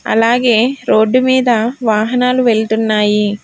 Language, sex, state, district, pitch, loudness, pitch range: Telugu, female, Telangana, Hyderabad, 230 Hz, -13 LUFS, 220-250 Hz